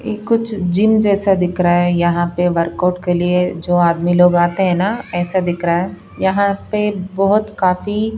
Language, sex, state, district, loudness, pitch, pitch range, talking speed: Hindi, female, Bihar, Patna, -16 LUFS, 180 Hz, 175-200 Hz, 185 wpm